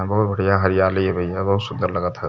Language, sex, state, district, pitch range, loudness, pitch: Hindi, male, Uttar Pradesh, Varanasi, 95-100 Hz, -20 LUFS, 95 Hz